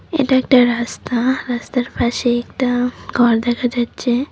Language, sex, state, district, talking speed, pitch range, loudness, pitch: Bengali, female, West Bengal, Cooch Behar, 125 wpm, 240-255 Hz, -17 LUFS, 245 Hz